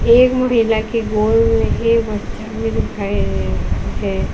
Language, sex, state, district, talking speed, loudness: Hindi, female, Uttar Pradesh, Lalitpur, 70 wpm, -17 LUFS